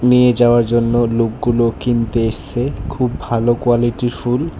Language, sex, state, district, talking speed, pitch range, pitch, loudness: Bengali, male, Tripura, West Tripura, 130 wpm, 115-125 Hz, 120 Hz, -16 LUFS